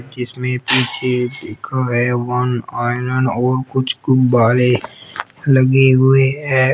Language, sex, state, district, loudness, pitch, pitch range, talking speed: Hindi, female, Uttar Pradesh, Shamli, -16 LUFS, 130 Hz, 125-130 Hz, 105 wpm